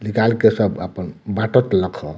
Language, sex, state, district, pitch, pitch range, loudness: Bhojpuri, male, Bihar, Muzaffarpur, 110 Hz, 100-110 Hz, -18 LUFS